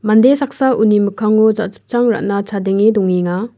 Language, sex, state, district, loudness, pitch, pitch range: Garo, female, Meghalaya, West Garo Hills, -14 LUFS, 215 Hz, 200-230 Hz